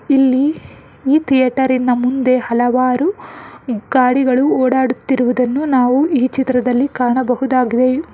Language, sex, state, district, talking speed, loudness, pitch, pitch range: Kannada, female, Karnataka, Bangalore, 95 wpm, -15 LUFS, 255 Hz, 250-265 Hz